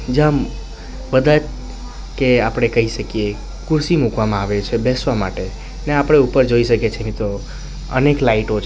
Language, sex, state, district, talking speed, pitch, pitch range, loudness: Gujarati, male, Gujarat, Valsad, 150 wpm, 125 Hz, 110-145 Hz, -17 LUFS